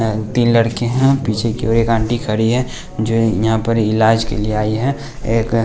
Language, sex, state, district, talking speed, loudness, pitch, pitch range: Hindi, male, Bihar, West Champaran, 210 wpm, -16 LUFS, 115 Hz, 110-120 Hz